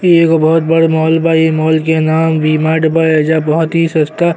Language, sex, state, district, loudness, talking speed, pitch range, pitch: Bhojpuri, male, Uttar Pradesh, Gorakhpur, -11 LUFS, 245 wpm, 160-165 Hz, 160 Hz